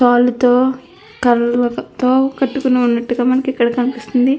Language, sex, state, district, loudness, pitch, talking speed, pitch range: Telugu, female, Andhra Pradesh, Krishna, -15 LUFS, 250 Hz, 95 wpm, 245-265 Hz